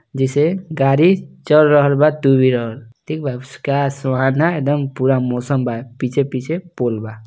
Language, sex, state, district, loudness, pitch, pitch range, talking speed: Hindi, male, Bihar, East Champaran, -17 LUFS, 135 Hz, 125-150 Hz, 140 wpm